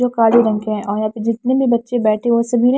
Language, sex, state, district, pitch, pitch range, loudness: Hindi, female, Maharashtra, Washim, 230 Hz, 215-240 Hz, -16 LUFS